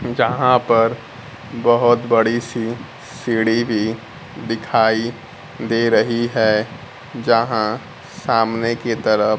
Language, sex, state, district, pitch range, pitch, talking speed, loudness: Hindi, male, Bihar, Kaimur, 110-120 Hz, 115 Hz, 95 wpm, -18 LUFS